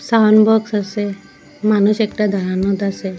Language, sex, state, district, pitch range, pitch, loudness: Bengali, female, Assam, Hailakandi, 195-215 Hz, 210 Hz, -16 LUFS